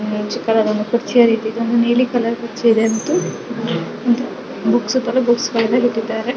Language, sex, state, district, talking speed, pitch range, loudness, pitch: Kannada, female, Karnataka, Belgaum, 95 wpm, 225-245 Hz, -17 LUFS, 235 Hz